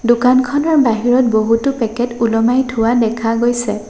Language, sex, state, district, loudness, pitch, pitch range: Assamese, female, Assam, Sonitpur, -14 LUFS, 240 Hz, 225-250 Hz